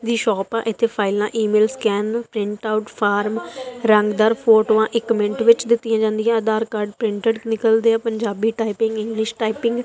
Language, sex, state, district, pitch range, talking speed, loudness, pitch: Punjabi, female, Punjab, Kapurthala, 215-230 Hz, 170 wpm, -19 LUFS, 220 Hz